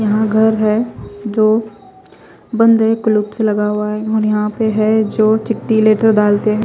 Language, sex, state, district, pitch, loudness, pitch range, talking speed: Hindi, female, Odisha, Khordha, 215 Hz, -14 LUFS, 210-220 Hz, 180 wpm